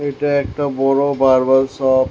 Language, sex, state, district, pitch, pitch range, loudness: Bengali, male, West Bengal, Jalpaiguri, 135 Hz, 130-140 Hz, -16 LUFS